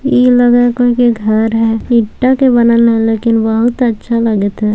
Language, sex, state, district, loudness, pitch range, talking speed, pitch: Maithili, female, Bihar, Samastipur, -11 LUFS, 225-245 Hz, 200 wpm, 235 Hz